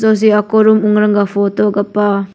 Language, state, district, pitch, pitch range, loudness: Nyishi, Arunachal Pradesh, Papum Pare, 210 Hz, 205-215 Hz, -12 LUFS